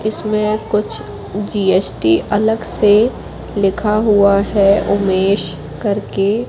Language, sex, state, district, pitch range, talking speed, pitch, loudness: Hindi, female, Madhya Pradesh, Katni, 195-215 Hz, 90 wpm, 205 Hz, -15 LUFS